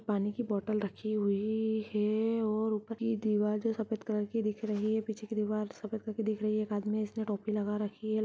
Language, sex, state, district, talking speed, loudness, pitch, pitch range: Hindi, female, Uttar Pradesh, Jyotiba Phule Nagar, 250 wpm, -33 LUFS, 215 Hz, 210-220 Hz